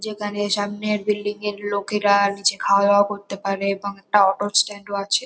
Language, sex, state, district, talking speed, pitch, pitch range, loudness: Bengali, female, West Bengal, North 24 Parganas, 170 wpm, 205 Hz, 200-205 Hz, -21 LUFS